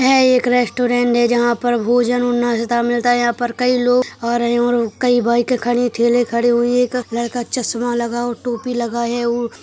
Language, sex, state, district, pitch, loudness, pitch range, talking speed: Hindi, male, Uttarakhand, Tehri Garhwal, 240 Hz, -17 LUFS, 235-245 Hz, 210 wpm